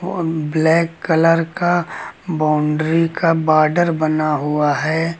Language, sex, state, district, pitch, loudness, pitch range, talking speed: Hindi, male, Uttar Pradesh, Lucknow, 160 Hz, -17 LUFS, 155-165 Hz, 115 wpm